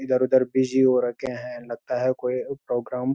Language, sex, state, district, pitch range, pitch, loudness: Hindi, male, Uttarakhand, Uttarkashi, 125-130 Hz, 130 Hz, -24 LUFS